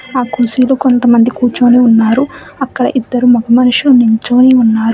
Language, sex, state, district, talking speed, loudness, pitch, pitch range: Telugu, female, Telangana, Hyderabad, 135 wpm, -10 LUFS, 245 Hz, 235-255 Hz